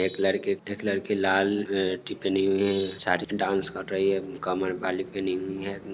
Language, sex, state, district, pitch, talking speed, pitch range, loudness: Hindi, male, Bihar, Sitamarhi, 95 Hz, 190 wpm, 95-100 Hz, -26 LUFS